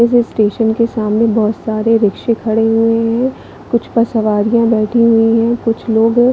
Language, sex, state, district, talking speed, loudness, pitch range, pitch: Hindi, female, Chhattisgarh, Bilaspur, 170 wpm, -13 LUFS, 220-230 Hz, 225 Hz